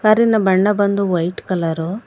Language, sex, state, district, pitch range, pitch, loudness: Kannada, female, Karnataka, Bangalore, 180-210 Hz, 195 Hz, -17 LUFS